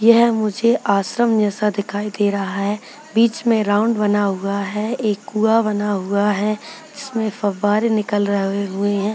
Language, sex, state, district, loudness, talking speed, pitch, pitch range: Hindi, female, Bihar, Purnia, -19 LUFS, 165 wpm, 210 Hz, 200-225 Hz